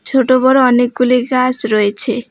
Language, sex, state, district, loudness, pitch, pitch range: Bengali, female, West Bengal, Alipurduar, -12 LUFS, 250 Hz, 235-255 Hz